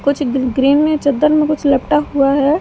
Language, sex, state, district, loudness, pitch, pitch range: Hindi, female, Haryana, Jhajjar, -14 LUFS, 285 Hz, 275-300 Hz